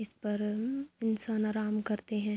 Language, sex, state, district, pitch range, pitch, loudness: Urdu, female, Andhra Pradesh, Anantapur, 210-225 Hz, 215 Hz, -34 LUFS